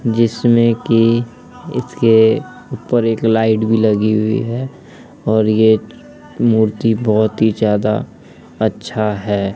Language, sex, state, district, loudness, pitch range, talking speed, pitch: Hindi, male, Bihar, Begusarai, -15 LUFS, 110-115 Hz, 115 wpm, 110 Hz